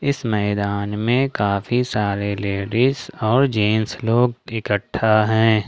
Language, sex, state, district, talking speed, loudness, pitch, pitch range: Hindi, male, Jharkhand, Ranchi, 115 wpm, -20 LUFS, 110 Hz, 105-120 Hz